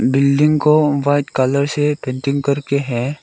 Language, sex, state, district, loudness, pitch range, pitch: Hindi, male, Arunachal Pradesh, Lower Dibang Valley, -16 LUFS, 140-145 Hz, 140 Hz